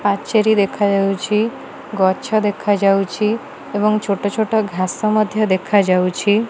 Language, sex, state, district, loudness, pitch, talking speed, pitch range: Odia, female, Odisha, Malkangiri, -17 LUFS, 205 Hz, 90 wpm, 195-215 Hz